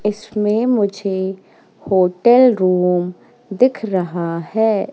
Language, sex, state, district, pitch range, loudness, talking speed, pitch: Hindi, female, Madhya Pradesh, Katni, 180-220 Hz, -17 LUFS, 85 wpm, 200 Hz